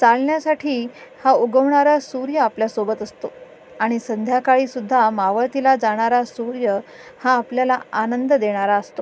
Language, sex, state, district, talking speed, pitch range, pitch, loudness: Marathi, female, Maharashtra, Sindhudurg, 120 wpm, 220-265 Hz, 250 Hz, -19 LUFS